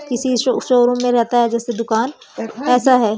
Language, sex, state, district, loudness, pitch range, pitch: Hindi, female, Madhya Pradesh, Umaria, -16 LUFS, 235-255 Hz, 245 Hz